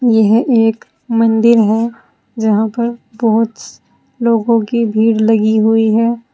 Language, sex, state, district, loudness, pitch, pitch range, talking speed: Hindi, female, Uttar Pradesh, Saharanpur, -13 LUFS, 225 Hz, 220-235 Hz, 125 wpm